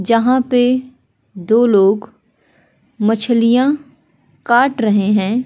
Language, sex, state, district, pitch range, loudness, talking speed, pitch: Hindi, female, Uttar Pradesh, Hamirpur, 210-255 Hz, -14 LUFS, 90 wpm, 235 Hz